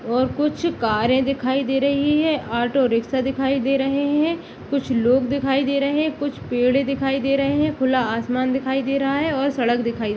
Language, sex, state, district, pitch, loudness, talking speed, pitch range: Hindi, female, Maharashtra, Dhule, 270 Hz, -21 LUFS, 200 wpm, 255-280 Hz